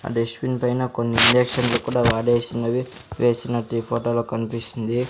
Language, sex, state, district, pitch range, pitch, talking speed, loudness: Telugu, male, Andhra Pradesh, Sri Satya Sai, 115-125 Hz, 120 Hz, 140 wpm, -21 LUFS